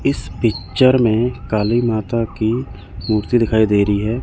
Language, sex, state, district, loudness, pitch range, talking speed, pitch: Hindi, male, Chandigarh, Chandigarh, -17 LUFS, 105-120 Hz, 155 wpm, 110 Hz